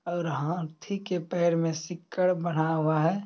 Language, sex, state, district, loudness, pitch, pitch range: Maithili, male, Bihar, Samastipur, -28 LUFS, 170 Hz, 160-180 Hz